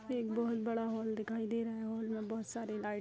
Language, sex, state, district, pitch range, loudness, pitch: Hindi, female, Bihar, Darbhanga, 220-230 Hz, -38 LUFS, 225 Hz